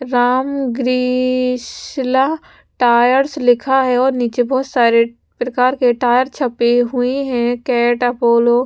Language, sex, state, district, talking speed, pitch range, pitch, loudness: Hindi, female, Punjab, Pathankot, 125 wpm, 240-260 Hz, 250 Hz, -15 LUFS